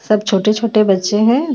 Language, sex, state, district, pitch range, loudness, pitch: Hindi, female, Jharkhand, Ranchi, 205-230 Hz, -14 LUFS, 215 Hz